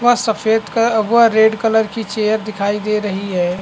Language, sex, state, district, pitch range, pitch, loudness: Hindi, male, Chhattisgarh, Bastar, 210-225 Hz, 220 Hz, -16 LUFS